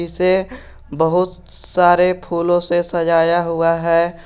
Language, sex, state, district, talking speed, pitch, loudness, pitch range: Hindi, male, Jharkhand, Garhwa, 115 wpm, 170 Hz, -16 LUFS, 165-180 Hz